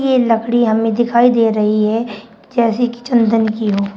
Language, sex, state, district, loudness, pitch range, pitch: Hindi, female, Uttar Pradesh, Shamli, -15 LUFS, 220-240 Hz, 230 Hz